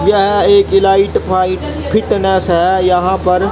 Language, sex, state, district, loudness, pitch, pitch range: Hindi, female, Haryana, Jhajjar, -12 LUFS, 190 Hz, 185-195 Hz